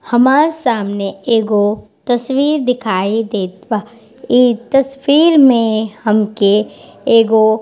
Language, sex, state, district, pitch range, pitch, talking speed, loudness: Bhojpuri, female, Bihar, East Champaran, 215-255 Hz, 225 Hz, 100 wpm, -13 LUFS